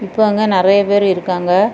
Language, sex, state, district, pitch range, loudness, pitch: Tamil, female, Tamil Nadu, Kanyakumari, 185-205 Hz, -14 LUFS, 200 Hz